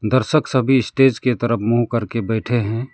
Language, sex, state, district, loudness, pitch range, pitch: Hindi, male, West Bengal, Alipurduar, -18 LUFS, 115-130 Hz, 120 Hz